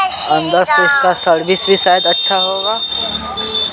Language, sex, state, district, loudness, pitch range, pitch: Hindi, male, Bihar, Patna, -12 LUFS, 185-285 Hz, 195 Hz